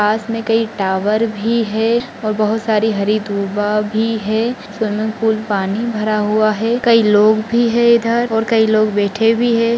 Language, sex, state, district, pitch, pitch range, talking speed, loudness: Hindi, female, Maharashtra, Aurangabad, 220 Hz, 210-230 Hz, 185 wpm, -16 LUFS